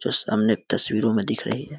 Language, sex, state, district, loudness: Hindi, male, Bihar, Muzaffarpur, -23 LUFS